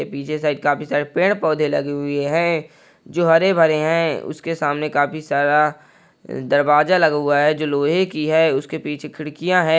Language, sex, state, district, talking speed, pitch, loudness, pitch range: Hindi, male, Maharashtra, Pune, 170 wpm, 155 Hz, -18 LUFS, 145-165 Hz